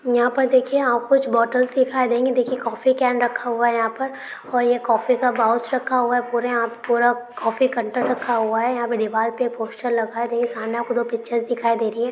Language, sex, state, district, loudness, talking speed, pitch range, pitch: Maithili, female, Bihar, Supaul, -21 LUFS, 230 wpm, 230-250 Hz, 240 Hz